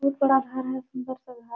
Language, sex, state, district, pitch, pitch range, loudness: Hindi, female, Jharkhand, Sahebganj, 260 Hz, 255-270 Hz, -26 LUFS